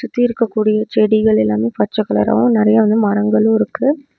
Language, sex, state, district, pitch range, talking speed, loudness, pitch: Tamil, female, Tamil Nadu, Namakkal, 210-230 Hz, 160 wpm, -15 LUFS, 215 Hz